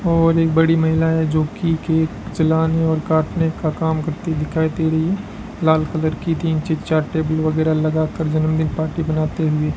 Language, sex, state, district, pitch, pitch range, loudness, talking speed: Hindi, male, Rajasthan, Bikaner, 160 Hz, 155-160 Hz, -19 LUFS, 190 wpm